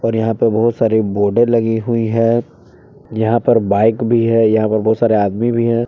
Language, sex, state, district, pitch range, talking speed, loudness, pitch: Hindi, male, Jharkhand, Palamu, 110-115 Hz, 205 wpm, -15 LUFS, 115 Hz